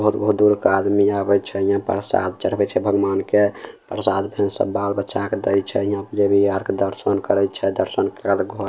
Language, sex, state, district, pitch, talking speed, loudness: Maithili, male, Bihar, Samastipur, 100 Hz, 220 wpm, -20 LUFS